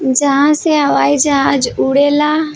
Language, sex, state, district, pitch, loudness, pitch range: Bhojpuri, female, Uttar Pradesh, Varanasi, 285 Hz, -12 LUFS, 280-300 Hz